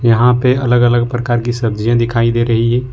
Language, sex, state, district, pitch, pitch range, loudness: Hindi, male, Jharkhand, Ranchi, 120 Hz, 115-125 Hz, -13 LUFS